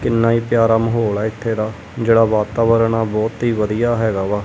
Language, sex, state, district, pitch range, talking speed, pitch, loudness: Punjabi, male, Punjab, Kapurthala, 110-115 Hz, 200 wpm, 115 Hz, -17 LUFS